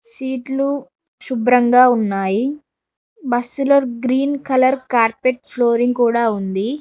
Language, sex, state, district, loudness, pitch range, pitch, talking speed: Telugu, female, Telangana, Mahabubabad, -17 LUFS, 235-275 Hz, 250 Hz, 90 wpm